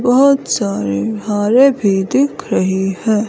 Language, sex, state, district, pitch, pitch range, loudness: Hindi, female, Himachal Pradesh, Shimla, 215 Hz, 190-265 Hz, -15 LUFS